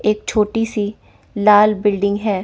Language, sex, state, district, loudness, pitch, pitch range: Hindi, female, Chandigarh, Chandigarh, -16 LUFS, 210 Hz, 205-215 Hz